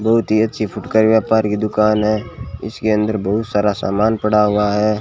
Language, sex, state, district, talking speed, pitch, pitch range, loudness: Hindi, male, Rajasthan, Bikaner, 190 wpm, 105 Hz, 105-110 Hz, -16 LUFS